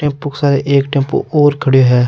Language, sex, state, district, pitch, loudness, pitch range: Rajasthani, male, Rajasthan, Nagaur, 140 Hz, -13 LUFS, 135-145 Hz